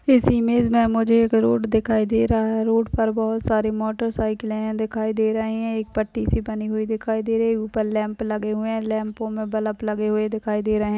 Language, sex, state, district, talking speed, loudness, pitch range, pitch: Hindi, female, Maharashtra, Solapur, 230 wpm, -22 LUFS, 215-225 Hz, 220 Hz